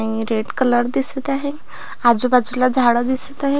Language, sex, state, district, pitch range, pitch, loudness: Marathi, female, Maharashtra, Pune, 240-270 Hz, 255 Hz, -18 LUFS